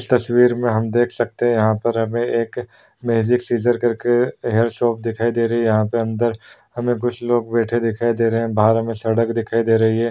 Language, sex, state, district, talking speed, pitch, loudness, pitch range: Hindi, male, Uttar Pradesh, Varanasi, 230 wpm, 115 Hz, -19 LUFS, 115-120 Hz